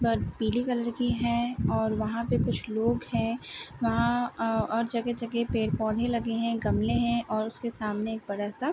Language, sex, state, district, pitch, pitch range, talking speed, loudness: Hindi, female, Uttar Pradesh, Varanasi, 230 Hz, 220-235 Hz, 190 wpm, -29 LUFS